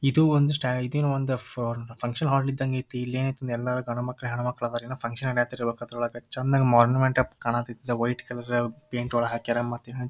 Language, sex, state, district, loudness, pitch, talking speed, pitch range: Kannada, male, Karnataka, Dharwad, -27 LUFS, 125 Hz, 170 wpm, 120-130 Hz